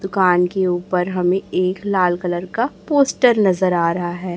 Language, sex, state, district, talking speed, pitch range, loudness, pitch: Hindi, male, Chhattisgarh, Raipur, 180 wpm, 180-195 Hz, -18 LUFS, 185 Hz